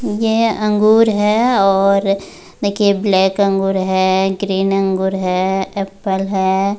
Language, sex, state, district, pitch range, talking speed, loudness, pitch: Hindi, female, Bihar, Muzaffarpur, 190-210 Hz, 115 wpm, -15 LUFS, 195 Hz